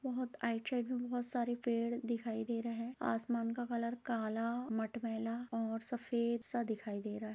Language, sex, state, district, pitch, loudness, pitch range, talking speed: Hindi, female, Chhattisgarh, Rajnandgaon, 235 Hz, -39 LUFS, 225-240 Hz, 170 wpm